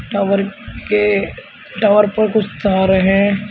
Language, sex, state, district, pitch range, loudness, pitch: Hindi, male, Uttar Pradesh, Shamli, 195-210 Hz, -15 LUFS, 200 Hz